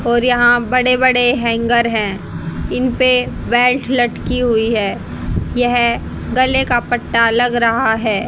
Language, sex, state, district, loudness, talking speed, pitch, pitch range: Hindi, female, Haryana, Charkhi Dadri, -15 LUFS, 130 wpm, 240 Hz, 230-250 Hz